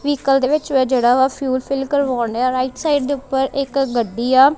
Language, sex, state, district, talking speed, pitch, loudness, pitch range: Punjabi, female, Punjab, Kapurthala, 195 wpm, 270 Hz, -18 LUFS, 255-280 Hz